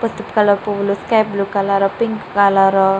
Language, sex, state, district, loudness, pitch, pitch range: Telugu, female, Andhra Pradesh, Chittoor, -16 LUFS, 200 Hz, 195-215 Hz